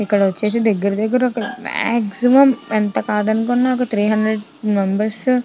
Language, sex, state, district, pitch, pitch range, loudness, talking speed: Telugu, female, Andhra Pradesh, Chittoor, 220 Hz, 210-245 Hz, -17 LUFS, 155 wpm